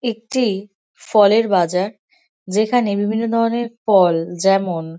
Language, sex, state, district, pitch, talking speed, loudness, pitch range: Bengali, female, West Bengal, North 24 Parganas, 205 Hz, 95 wpm, -17 LUFS, 190-230 Hz